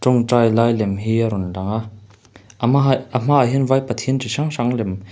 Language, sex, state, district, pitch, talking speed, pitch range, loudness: Mizo, male, Mizoram, Aizawl, 120 Hz, 260 wpm, 110-130 Hz, -18 LUFS